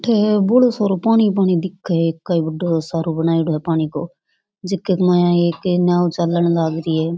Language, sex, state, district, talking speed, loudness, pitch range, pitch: Rajasthani, female, Rajasthan, Churu, 190 wpm, -17 LUFS, 165-190 Hz, 175 Hz